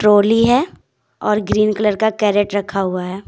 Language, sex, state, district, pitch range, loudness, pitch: Hindi, female, Jharkhand, Deoghar, 200-215 Hz, -16 LUFS, 210 Hz